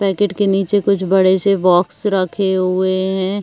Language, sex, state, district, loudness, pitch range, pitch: Hindi, female, Uttar Pradesh, Jyotiba Phule Nagar, -15 LUFS, 185-200 Hz, 190 Hz